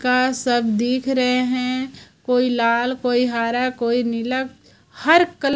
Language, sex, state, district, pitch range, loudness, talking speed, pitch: Hindi, female, Chhattisgarh, Raipur, 240-260 Hz, -20 LUFS, 140 wpm, 250 Hz